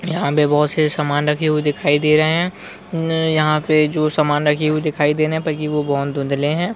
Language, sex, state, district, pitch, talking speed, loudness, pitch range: Hindi, male, Chhattisgarh, Bilaspur, 150 Hz, 250 wpm, -18 LUFS, 150-155 Hz